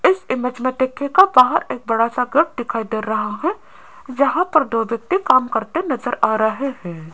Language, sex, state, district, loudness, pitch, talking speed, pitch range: Hindi, female, Rajasthan, Jaipur, -18 LUFS, 255 Hz, 210 wpm, 225-315 Hz